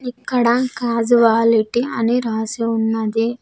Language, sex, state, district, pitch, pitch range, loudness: Telugu, female, Andhra Pradesh, Sri Satya Sai, 230 Hz, 225-245 Hz, -17 LUFS